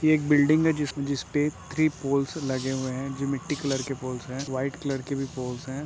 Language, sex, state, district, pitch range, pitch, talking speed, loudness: Hindi, male, Uttar Pradesh, Etah, 130-145 Hz, 140 Hz, 225 wpm, -27 LUFS